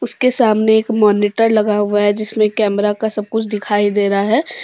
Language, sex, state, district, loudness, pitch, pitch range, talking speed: Hindi, female, Jharkhand, Deoghar, -15 LUFS, 215 Hz, 205-225 Hz, 205 wpm